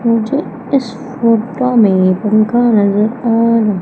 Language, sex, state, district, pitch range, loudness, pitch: Hindi, female, Madhya Pradesh, Umaria, 215-245 Hz, -13 LUFS, 230 Hz